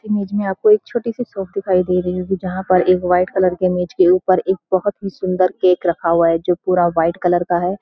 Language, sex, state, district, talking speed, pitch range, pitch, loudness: Hindi, female, Uttarakhand, Uttarkashi, 270 wpm, 180-190 Hz, 185 Hz, -17 LUFS